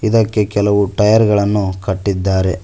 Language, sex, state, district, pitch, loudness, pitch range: Kannada, male, Karnataka, Koppal, 100 Hz, -15 LUFS, 95-105 Hz